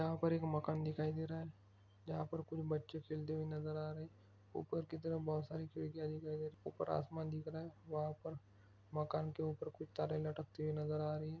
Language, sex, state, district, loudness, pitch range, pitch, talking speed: Hindi, male, Bihar, Begusarai, -44 LUFS, 150-160 Hz, 155 Hz, 240 wpm